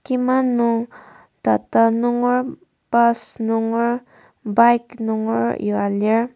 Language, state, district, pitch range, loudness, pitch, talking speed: Ao, Nagaland, Kohima, 225-245 Hz, -19 LUFS, 235 Hz, 95 wpm